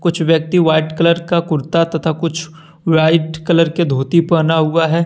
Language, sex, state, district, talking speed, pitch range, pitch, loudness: Hindi, male, Jharkhand, Deoghar, 180 wpm, 160-170 Hz, 165 Hz, -15 LUFS